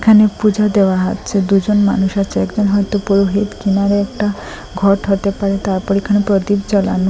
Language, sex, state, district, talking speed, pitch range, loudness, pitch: Bengali, female, Assam, Hailakandi, 150 wpm, 195-205 Hz, -15 LUFS, 200 Hz